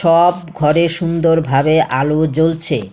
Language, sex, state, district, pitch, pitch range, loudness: Bengali, female, West Bengal, Alipurduar, 160 Hz, 150-170 Hz, -14 LUFS